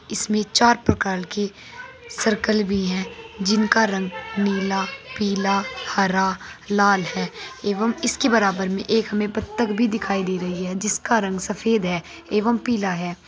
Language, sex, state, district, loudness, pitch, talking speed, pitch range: Hindi, female, Uttar Pradesh, Saharanpur, -22 LUFS, 205 Hz, 150 wpm, 190-225 Hz